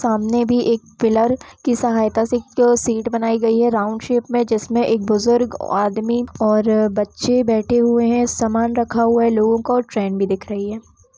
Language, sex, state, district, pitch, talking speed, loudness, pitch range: Hindi, female, Bihar, Purnia, 230 Hz, 200 wpm, -18 LUFS, 220-240 Hz